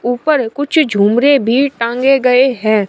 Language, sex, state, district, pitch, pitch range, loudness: Hindi, female, Uttar Pradesh, Shamli, 250 Hz, 230-280 Hz, -12 LUFS